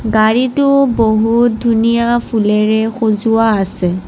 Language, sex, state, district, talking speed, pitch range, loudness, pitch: Assamese, female, Assam, Kamrup Metropolitan, 90 wpm, 215-235 Hz, -13 LUFS, 225 Hz